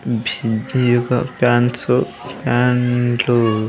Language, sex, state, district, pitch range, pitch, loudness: Telugu, male, Andhra Pradesh, Sri Satya Sai, 115-125 Hz, 120 Hz, -17 LUFS